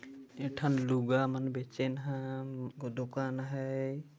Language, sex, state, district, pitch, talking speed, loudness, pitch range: Chhattisgarhi, male, Chhattisgarh, Jashpur, 130 Hz, 115 wpm, -35 LUFS, 130-135 Hz